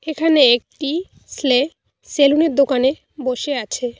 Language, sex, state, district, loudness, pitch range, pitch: Bengali, female, West Bengal, Cooch Behar, -17 LUFS, 255-310 Hz, 280 Hz